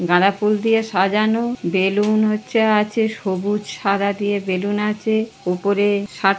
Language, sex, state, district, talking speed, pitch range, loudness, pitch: Bengali, female, West Bengal, North 24 Parganas, 120 wpm, 195-215 Hz, -19 LUFS, 205 Hz